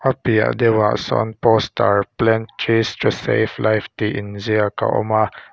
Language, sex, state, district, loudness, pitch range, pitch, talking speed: Mizo, male, Mizoram, Aizawl, -18 LUFS, 105-115 Hz, 110 Hz, 185 wpm